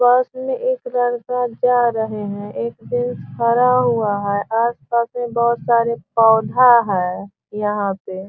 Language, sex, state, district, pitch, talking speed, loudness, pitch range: Hindi, female, Bihar, Sitamarhi, 235 Hz, 175 wpm, -18 LUFS, 205-245 Hz